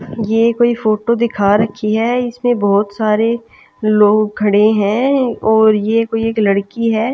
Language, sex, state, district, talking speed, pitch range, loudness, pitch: Hindi, female, Punjab, Pathankot, 150 wpm, 210-235 Hz, -14 LUFS, 220 Hz